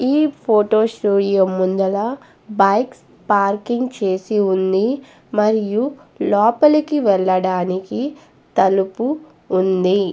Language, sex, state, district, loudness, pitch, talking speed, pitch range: Telugu, female, Andhra Pradesh, Guntur, -18 LUFS, 210 Hz, 75 wpm, 190-245 Hz